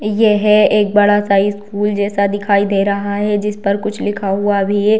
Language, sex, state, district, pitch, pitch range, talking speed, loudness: Hindi, female, Bihar, Darbhanga, 205 Hz, 200-210 Hz, 205 wpm, -15 LUFS